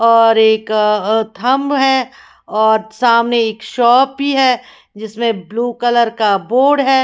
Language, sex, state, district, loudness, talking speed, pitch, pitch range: Hindi, female, Haryana, Jhajjar, -14 LUFS, 145 wpm, 235 Hz, 220-265 Hz